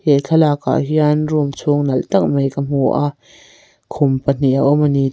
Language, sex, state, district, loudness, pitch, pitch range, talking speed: Mizo, female, Mizoram, Aizawl, -16 LUFS, 145 Hz, 135-150 Hz, 200 wpm